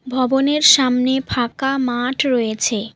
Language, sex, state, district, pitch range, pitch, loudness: Bengali, female, West Bengal, Alipurduar, 240-270 Hz, 255 Hz, -17 LUFS